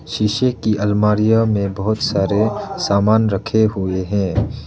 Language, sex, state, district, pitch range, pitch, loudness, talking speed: Hindi, male, Arunachal Pradesh, Lower Dibang Valley, 100-110 Hz, 105 Hz, -17 LUFS, 130 wpm